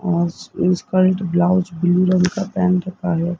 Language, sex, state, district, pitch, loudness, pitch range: Hindi, female, Rajasthan, Jaipur, 180 Hz, -18 LUFS, 175-185 Hz